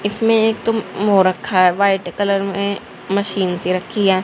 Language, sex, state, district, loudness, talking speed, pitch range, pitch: Hindi, female, Haryana, Jhajjar, -17 LUFS, 185 wpm, 185-205 Hz, 200 Hz